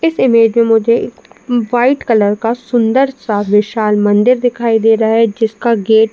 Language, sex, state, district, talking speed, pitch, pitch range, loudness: Hindi, female, Uttar Pradesh, Jalaun, 185 wpm, 230 Hz, 220-245 Hz, -12 LUFS